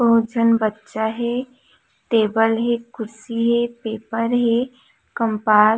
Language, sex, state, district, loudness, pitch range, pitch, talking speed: Chhattisgarhi, female, Chhattisgarh, Raigarh, -20 LUFS, 220-235 Hz, 230 Hz, 125 wpm